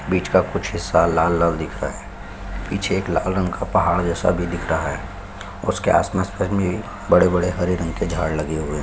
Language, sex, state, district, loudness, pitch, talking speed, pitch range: Hindi, male, Chhattisgarh, Sukma, -21 LUFS, 90 Hz, 210 wpm, 85-100 Hz